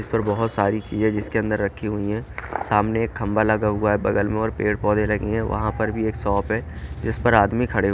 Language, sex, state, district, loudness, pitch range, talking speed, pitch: Hindi, male, Haryana, Charkhi Dadri, -22 LUFS, 105-110 Hz, 265 wpm, 105 Hz